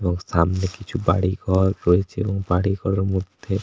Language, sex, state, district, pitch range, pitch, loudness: Bengali, male, West Bengal, Paschim Medinipur, 90-95 Hz, 95 Hz, -22 LUFS